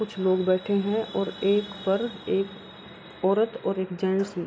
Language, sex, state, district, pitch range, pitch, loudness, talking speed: Hindi, female, Bihar, Kishanganj, 185-205 Hz, 195 Hz, -26 LUFS, 175 wpm